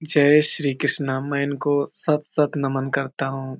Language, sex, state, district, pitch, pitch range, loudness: Hindi, male, Uttar Pradesh, Hamirpur, 140 Hz, 135-150 Hz, -22 LUFS